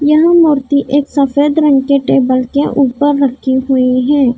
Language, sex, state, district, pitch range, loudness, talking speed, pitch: Hindi, female, Maharashtra, Mumbai Suburban, 260-290 Hz, -11 LUFS, 165 wpm, 280 Hz